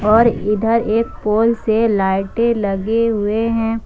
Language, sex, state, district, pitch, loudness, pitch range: Hindi, female, Jharkhand, Ranchi, 225 Hz, -17 LUFS, 210-230 Hz